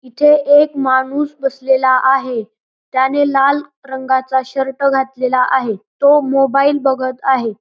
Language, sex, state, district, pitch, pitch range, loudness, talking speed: Marathi, male, Maharashtra, Pune, 265 Hz, 260-280 Hz, -14 LUFS, 120 wpm